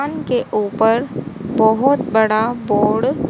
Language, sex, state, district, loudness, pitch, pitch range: Hindi, female, Haryana, Charkhi Dadri, -17 LUFS, 225 Hz, 215-265 Hz